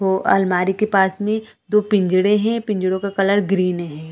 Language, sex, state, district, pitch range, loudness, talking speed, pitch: Hindi, female, Chhattisgarh, Balrampur, 185-210 Hz, -18 LUFS, 190 wpm, 195 Hz